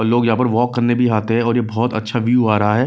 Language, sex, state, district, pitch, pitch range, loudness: Hindi, male, Bihar, West Champaran, 120 Hz, 110-120 Hz, -17 LUFS